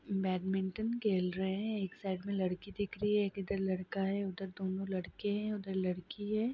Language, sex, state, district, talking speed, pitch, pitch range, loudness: Hindi, female, Chhattisgarh, Raigarh, 190 wpm, 195 Hz, 190-205 Hz, -36 LUFS